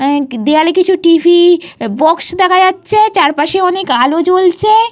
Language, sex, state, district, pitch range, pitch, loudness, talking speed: Bengali, female, Jharkhand, Jamtara, 305-370 Hz, 345 Hz, -10 LUFS, 145 wpm